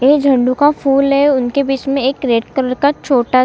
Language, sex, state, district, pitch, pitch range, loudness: Hindi, female, Chhattisgarh, Kabirdham, 270 Hz, 255-280 Hz, -14 LUFS